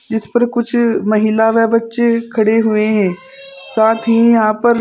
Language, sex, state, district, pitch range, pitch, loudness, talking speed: Hindi, female, Uttar Pradesh, Saharanpur, 220-235 Hz, 230 Hz, -14 LUFS, 160 wpm